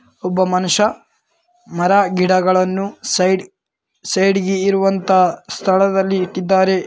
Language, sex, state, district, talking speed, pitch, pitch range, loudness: Kannada, male, Karnataka, Bellary, 85 wpm, 190 Hz, 185-195 Hz, -16 LUFS